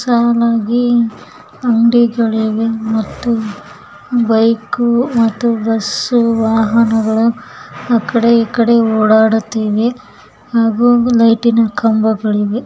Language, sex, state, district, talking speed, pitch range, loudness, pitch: Kannada, female, Karnataka, Bellary, 65 wpm, 220-235 Hz, -13 LUFS, 230 Hz